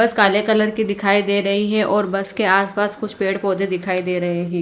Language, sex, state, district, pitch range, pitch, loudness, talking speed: Hindi, female, Punjab, Fazilka, 195-210 Hz, 200 Hz, -18 LUFS, 245 wpm